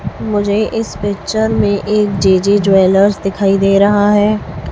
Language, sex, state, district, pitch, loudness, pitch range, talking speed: Hindi, female, Chhattisgarh, Raipur, 205 Hz, -13 LUFS, 195-210 Hz, 140 wpm